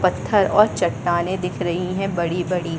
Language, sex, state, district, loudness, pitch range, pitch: Hindi, female, Chhattisgarh, Bilaspur, -20 LUFS, 175-185 Hz, 175 Hz